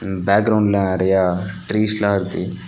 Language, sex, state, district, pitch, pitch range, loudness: Tamil, male, Tamil Nadu, Nilgiris, 95 Hz, 95-105 Hz, -18 LUFS